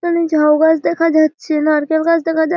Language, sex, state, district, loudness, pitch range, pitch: Bengali, female, West Bengal, Malda, -14 LUFS, 310-330 Hz, 320 Hz